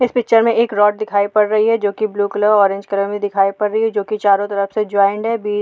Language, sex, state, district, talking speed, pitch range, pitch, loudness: Hindi, female, Bihar, Saharsa, 310 wpm, 200-215 Hz, 210 Hz, -16 LUFS